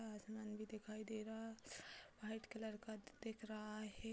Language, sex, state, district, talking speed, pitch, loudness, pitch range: Hindi, female, Uttar Pradesh, Budaun, 175 wpm, 220 Hz, -52 LUFS, 215-220 Hz